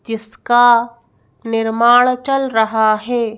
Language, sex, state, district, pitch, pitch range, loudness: Hindi, female, Madhya Pradesh, Bhopal, 235 Hz, 225-240 Hz, -14 LUFS